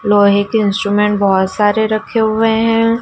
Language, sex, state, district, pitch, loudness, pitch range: Hindi, female, Madhya Pradesh, Dhar, 210 Hz, -13 LUFS, 205-225 Hz